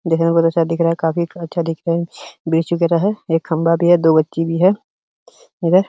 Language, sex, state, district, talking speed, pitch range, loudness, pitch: Hindi, male, Uttar Pradesh, Hamirpur, 255 wpm, 165-170 Hz, -17 LUFS, 170 Hz